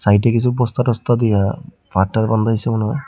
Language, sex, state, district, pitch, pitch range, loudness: Bengali, male, Tripura, Unakoti, 115 Hz, 105-120 Hz, -17 LUFS